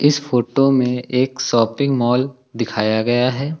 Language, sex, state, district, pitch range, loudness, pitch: Hindi, male, Uttar Pradesh, Lucknow, 120-135 Hz, -18 LUFS, 125 Hz